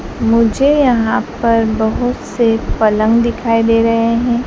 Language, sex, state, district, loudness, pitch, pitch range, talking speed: Hindi, female, Madhya Pradesh, Dhar, -14 LUFS, 230 Hz, 225-235 Hz, 135 wpm